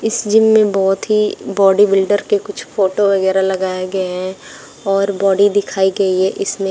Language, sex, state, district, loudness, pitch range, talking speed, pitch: Hindi, female, Uttar Pradesh, Shamli, -15 LUFS, 190-205 Hz, 170 wpm, 195 Hz